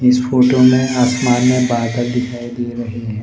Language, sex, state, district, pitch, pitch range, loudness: Hindi, male, Arunachal Pradesh, Lower Dibang Valley, 125 Hz, 120-125 Hz, -15 LUFS